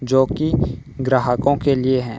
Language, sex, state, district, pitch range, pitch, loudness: Hindi, male, Uttar Pradesh, Hamirpur, 125-140 Hz, 130 Hz, -19 LUFS